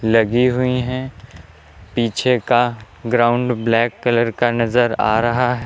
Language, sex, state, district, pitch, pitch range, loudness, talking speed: Hindi, male, Uttar Pradesh, Lucknow, 120 Hz, 115-125 Hz, -17 LUFS, 140 wpm